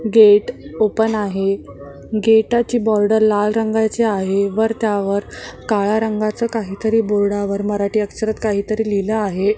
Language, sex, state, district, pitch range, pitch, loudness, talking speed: Marathi, female, Maharashtra, Mumbai Suburban, 200-220 Hz, 215 Hz, -17 LUFS, 120 wpm